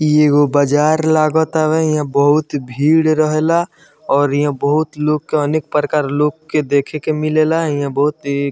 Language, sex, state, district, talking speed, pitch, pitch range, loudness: Bhojpuri, male, Bihar, Muzaffarpur, 185 wpm, 150 Hz, 145-155 Hz, -15 LUFS